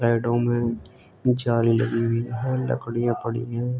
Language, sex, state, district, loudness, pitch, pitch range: Hindi, male, Uttar Pradesh, Jalaun, -24 LUFS, 120 Hz, 115-120 Hz